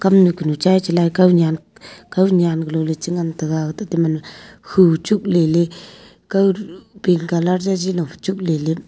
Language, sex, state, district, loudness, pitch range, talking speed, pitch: Wancho, female, Arunachal Pradesh, Longding, -18 LUFS, 160-190 Hz, 160 wpm, 175 Hz